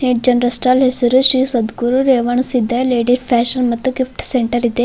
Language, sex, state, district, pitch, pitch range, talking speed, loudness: Kannada, female, Karnataka, Bidar, 250 Hz, 240-260 Hz, 160 wpm, -14 LUFS